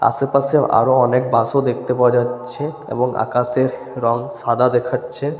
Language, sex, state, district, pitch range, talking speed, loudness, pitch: Bengali, male, West Bengal, Paschim Medinipur, 120-130 Hz, 145 wpm, -18 LUFS, 125 Hz